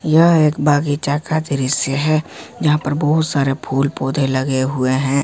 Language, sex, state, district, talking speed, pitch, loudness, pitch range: Hindi, male, Jharkhand, Ranchi, 170 wpm, 145 Hz, -17 LUFS, 135-150 Hz